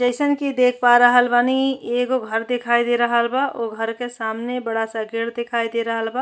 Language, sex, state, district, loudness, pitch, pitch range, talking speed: Bhojpuri, female, Uttar Pradesh, Ghazipur, -20 LUFS, 240 Hz, 230-250 Hz, 220 wpm